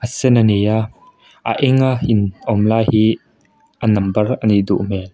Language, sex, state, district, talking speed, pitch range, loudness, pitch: Mizo, male, Mizoram, Aizawl, 185 wpm, 105-120 Hz, -16 LUFS, 110 Hz